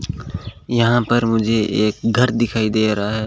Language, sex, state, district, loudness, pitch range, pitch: Hindi, male, Rajasthan, Bikaner, -18 LUFS, 110-120 Hz, 115 Hz